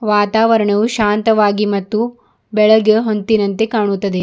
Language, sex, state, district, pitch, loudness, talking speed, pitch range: Kannada, female, Karnataka, Bidar, 215 Hz, -14 LUFS, 85 wpm, 205-220 Hz